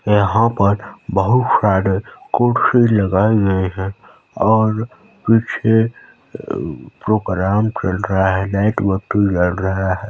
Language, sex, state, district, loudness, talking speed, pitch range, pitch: Hindi, male, Chhattisgarh, Balrampur, -17 LUFS, 120 wpm, 95-110 Hz, 100 Hz